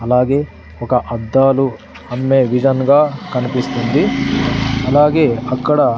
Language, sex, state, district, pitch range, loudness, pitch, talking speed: Telugu, male, Andhra Pradesh, Sri Satya Sai, 125-135 Hz, -15 LUFS, 130 Hz, 90 wpm